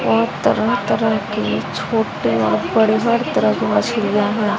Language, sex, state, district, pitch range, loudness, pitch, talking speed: Hindi, female, Bihar, West Champaran, 205-225 Hz, -18 LUFS, 215 Hz, 155 wpm